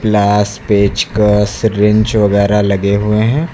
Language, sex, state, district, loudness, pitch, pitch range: Hindi, male, Uttar Pradesh, Lucknow, -12 LUFS, 105 Hz, 100-110 Hz